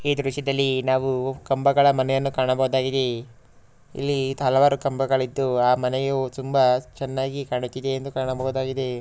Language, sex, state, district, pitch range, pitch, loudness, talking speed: Kannada, male, Karnataka, Shimoga, 130-135 Hz, 130 Hz, -23 LUFS, 115 wpm